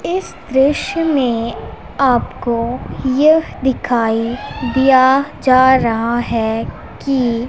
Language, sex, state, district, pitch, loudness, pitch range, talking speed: Hindi, female, Punjab, Pathankot, 255 Hz, -15 LUFS, 235-270 Hz, 90 wpm